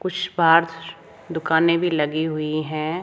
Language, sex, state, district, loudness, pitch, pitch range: Hindi, female, Rajasthan, Jaipur, -20 LUFS, 165 Hz, 155-170 Hz